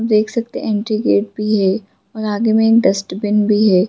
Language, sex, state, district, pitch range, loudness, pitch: Hindi, female, Jharkhand, Sahebganj, 200-220 Hz, -16 LUFS, 215 Hz